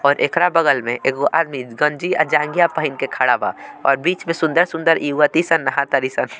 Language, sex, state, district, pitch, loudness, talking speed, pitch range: Bhojpuri, male, Bihar, Muzaffarpur, 155 Hz, -18 LUFS, 205 wpm, 140-165 Hz